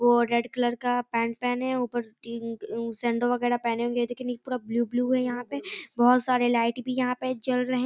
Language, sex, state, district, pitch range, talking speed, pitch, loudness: Hindi, female, Bihar, Darbhanga, 235-250 Hz, 235 wpm, 245 Hz, -27 LUFS